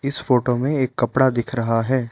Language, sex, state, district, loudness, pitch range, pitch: Hindi, male, Arunachal Pradesh, Lower Dibang Valley, -20 LUFS, 120-135 Hz, 130 Hz